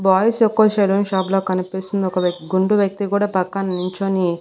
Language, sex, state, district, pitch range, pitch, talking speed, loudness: Telugu, female, Andhra Pradesh, Annamaya, 185-200 Hz, 190 Hz, 165 wpm, -19 LUFS